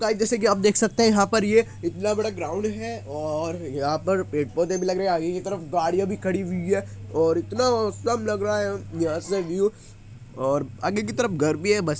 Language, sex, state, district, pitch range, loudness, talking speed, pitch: Hindi, male, Uttar Pradesh, Muzaffarnagar, 150-210 Hz, -24 LUFS, 240 wpm, 185 Hz